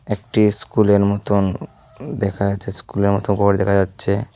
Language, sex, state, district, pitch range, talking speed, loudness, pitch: Bengali, male, Tripura, Unakoti, 100-105 Hz, 140 wpm, -18 LUFS, 100 Hz